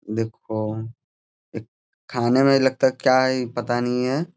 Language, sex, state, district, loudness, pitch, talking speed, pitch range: Hindi, male, Bihar, Jamui, -21 LUFS, 125 Hz, 180 wpm, 110-130 Hz